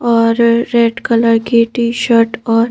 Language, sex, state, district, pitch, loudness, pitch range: Hindi, female, Madhya Pradesh, Bhopal, 230 Hz, -12 LUFS, 230-235 Hz